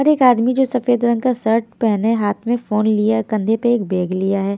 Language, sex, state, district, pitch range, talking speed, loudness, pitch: Hindi, female, Haryana, Jhajjar, 210-240 Hz, 250 wpm, -17 LUFS, 225 Hz